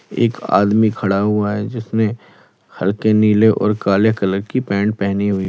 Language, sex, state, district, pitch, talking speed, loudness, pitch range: Hindi, male, Uttar Pradesh, Lalitpur, 105 Hz, 165 wpm, -17 LUFS, 100-110 Hz